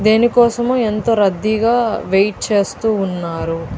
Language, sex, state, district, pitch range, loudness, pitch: Telugu, female, Andhra Pradesh, Chittoor, 195-230 Hz, -16 LUFS, 215 Hz